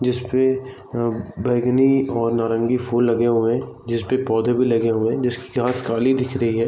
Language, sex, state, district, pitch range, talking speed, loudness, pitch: Hindi, male, Chhattisgarh, Raigarh, 115-125 Hz, 190 wpm, -20 LUFS, 120 Hz